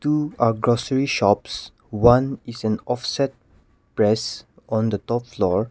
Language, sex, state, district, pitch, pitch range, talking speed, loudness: English, male, Nagaland, Kohima, 115 Hz, 105-125 Hz, 135 wpm, -21 LUFS